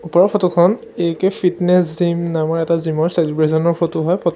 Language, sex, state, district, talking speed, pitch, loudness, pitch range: Assamese, male, Assam, Sonitpur, 220 wpm, 170 Hz, -17 LUFS, 165-180 Hz